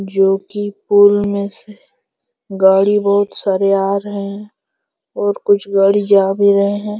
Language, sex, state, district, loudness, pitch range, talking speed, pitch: Hindi, male, Jharkhand, Jamtara, -14 LUFS, 195-205 Hz, 155 wpm, 200 Hz